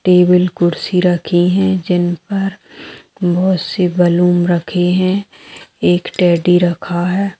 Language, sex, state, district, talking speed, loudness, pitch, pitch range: Magahi, female, Bihar, Gaya, 120 wpm, -14 LUFS, 180 Hz, 175-185 Hz